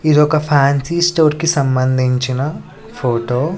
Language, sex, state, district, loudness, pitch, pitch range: Telugu, male, Andhra Pradesh, Sri Satya Sai, -15 LUFS, 140 Hz, 130-155 Hz